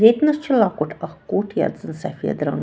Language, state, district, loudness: Kashmiri, Punjab, Kapurthala, -21 LUFS